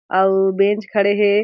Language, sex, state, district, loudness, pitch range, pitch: Chhattisgarhi, female, Chhattisgarh, Jashpur, -17 LUFS, 195-205 Hz, 200 Hz